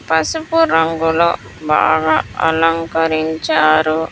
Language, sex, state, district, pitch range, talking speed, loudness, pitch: Telugu, female, Andhra Pradesh, Sri Satya Sai, 155-165 Hz, 60 wpm, -15 LUFS, 160 Hz